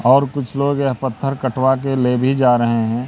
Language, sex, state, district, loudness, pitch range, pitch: Hindi, male, Madhya Pradesh, Katni, -17 LUFS, 125-135 Hz, 130 Hz